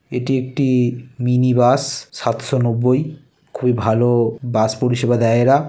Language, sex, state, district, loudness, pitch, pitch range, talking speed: Bengali, male, West Bengal, Kolkata, -17 LUFS, 125 Hz, 120-135 Hz, 135 wpm